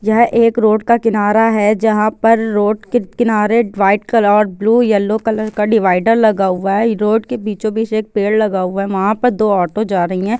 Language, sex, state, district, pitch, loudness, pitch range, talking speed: Hindi, female, Chhattisgarh, Bilaspur, 215 Hz, -14 LUFS, 205-225 Hz, 220 wpm